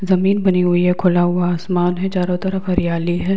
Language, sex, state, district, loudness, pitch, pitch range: Hindi, male, Uttar Pradesh, Hamirpur, -17 LUFS, 180 Hz, 175-190 Hz